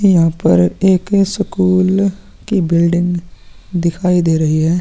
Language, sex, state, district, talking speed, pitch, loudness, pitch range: Hindi, male, Uttarakhand, Tehri Garhwal, 125 wpm, 180 Hz, -14 LUFS, 170-190 Hz